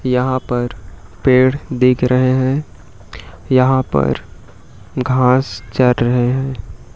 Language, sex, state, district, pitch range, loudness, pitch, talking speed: Hindi, male, Chhattisgarh, Raipur, 120-130 Hz, -16 LUFS, 125 Hz, 105 wpm